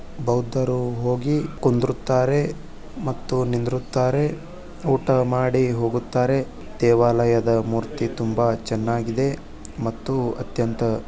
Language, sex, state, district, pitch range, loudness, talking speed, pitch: Kannada, male, Karnataka, Bijapur, 115-135 Hz, -22 LUFS, 80 wpm, 125 Hz